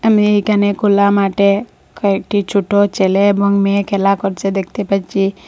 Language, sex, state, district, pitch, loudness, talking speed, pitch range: Bengali, female, Assam, Hailakandi, 200 Hz, -14 LUFS, 140 wpm, 195-205 Hz